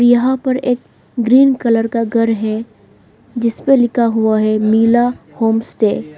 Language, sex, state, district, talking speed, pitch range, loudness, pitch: Hindi, female, Arunachal Pradesh, Lower Dibang Valley, 145 wpm, 225-245 Hz, -14 LUFS, 230 Hz